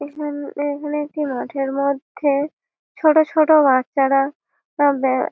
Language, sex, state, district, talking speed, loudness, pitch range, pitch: Bengali, female, West Bengal, Malda, 100 wpm, -19 LUFS, 275-295 Hz, 285 Hz